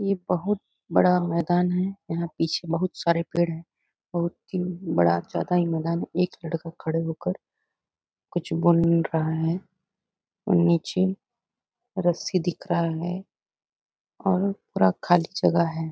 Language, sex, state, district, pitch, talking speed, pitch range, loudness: Hindi, female, Chhattisgarh, Bastar, 175 Hz, 135 wpm, 165-185 Hz, -25 LUFS